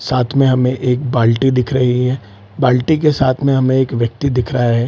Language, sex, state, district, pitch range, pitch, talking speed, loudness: Hindi, male, Bihar, Saran, 125-135 Hz, 125 Hz, 220 wpm, -15 LUFS